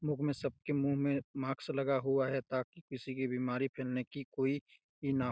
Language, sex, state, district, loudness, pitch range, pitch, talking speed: Hindi, male, Chhattisgarh, Raigarh, -36 LUFS, 130-140 Hz, 135 Hz, 190 wpm